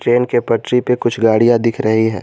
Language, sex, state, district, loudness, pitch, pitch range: Hindi, male, Jharkhand, Garhwa, -15 LUFS, 115 Hz, 110-120 Hz